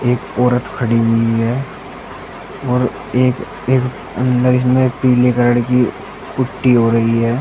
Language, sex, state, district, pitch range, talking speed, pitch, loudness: Hindi, male, Uttar Pradesh, Shamli, 120-125 Hz, 130 wpm, 125 Hz, -15 LUFS